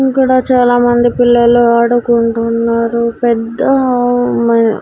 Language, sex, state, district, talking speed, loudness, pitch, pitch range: Telugu, female, Andhra Pradesh, Annamaya, 100 wpm, -11 LUFS, 240 Hz, 230-245 Hz